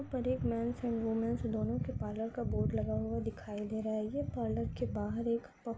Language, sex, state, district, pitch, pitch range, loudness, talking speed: Marwari, female, Rajasthan, Nagaur, 225 Hz, 210-235 Hz, -36 LUFS, 240 wpm